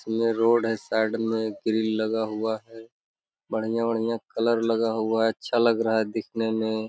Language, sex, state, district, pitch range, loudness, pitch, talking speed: Hindi, male, Bihar, Jamui, 110-115 Hz, -25 LUFS, 115 Hz, 175 wpm